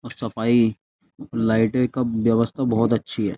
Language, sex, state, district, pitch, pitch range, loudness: Hindi, male, Uttar Pradesh, Jyotiba Phule Nagar, 115 Hz, 115-120 Hz, -21 LUFS